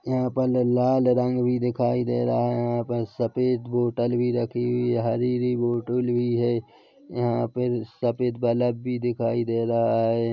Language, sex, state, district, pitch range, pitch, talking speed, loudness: Hindi, male, Chhattisgarh, Korba, 120-125 Hz, 120 Hz, 170 wpm, -24 LUFS